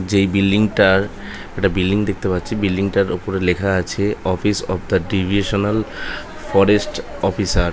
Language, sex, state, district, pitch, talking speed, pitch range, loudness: Bengali, male, West Bengal, North 24 Parganas, 100 Hz, 145 wpm, 95-100 Hz, -18 LUFS